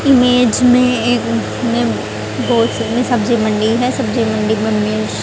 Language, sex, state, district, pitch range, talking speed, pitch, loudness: Hindi, female, Haryana, Jhajjar, 220-245 Hz, 125 wpm, 235 Hz, -15 LUFS